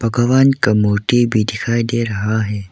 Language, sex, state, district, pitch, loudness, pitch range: Hindi, male, Arunachal Pradesh, Lower Dibang Valley, 115 Hz, -16 LUFS, 105-120 Hz